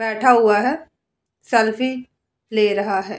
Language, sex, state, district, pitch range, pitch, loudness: Hindi, female, Uttar Pradesh, Hamirpur, 210-255 Hz, 225 Hz, -18 LUFS